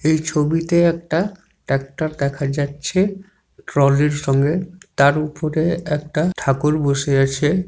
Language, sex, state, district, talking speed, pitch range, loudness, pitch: Bengali, male, West Bengal, Purulia, 110 wpm, 140-170 Hz, -19 LUFS, 155 Hz